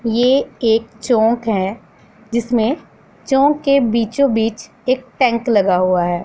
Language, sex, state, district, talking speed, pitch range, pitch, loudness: Hindi, female, Punjab, Pathankot, 135 wpm, 215-255 Hz, 230 Hz, -17 LUFS